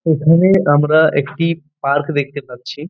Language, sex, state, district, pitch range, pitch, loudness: Bengali, male, West Bengal, Purulia, 140-165 Hz, 150 Hz, -14 LUFS